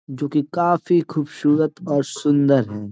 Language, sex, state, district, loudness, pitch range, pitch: Hindi, male, Bihar, Gaya, -20 LUFS, 140-160 Hz, 150 Hz